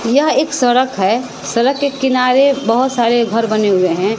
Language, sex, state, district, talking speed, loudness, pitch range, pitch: Hindi, female, Bihar, West Champaran, 185 wpm, -14 LUFS, 225-265 Hz, 245 Hz